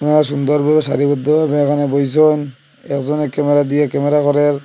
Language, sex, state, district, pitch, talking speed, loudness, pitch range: Bengali, male, Assam, Hailakandi, 145 Hz, 140 wpm, -15 LUFS, 145-150 Hz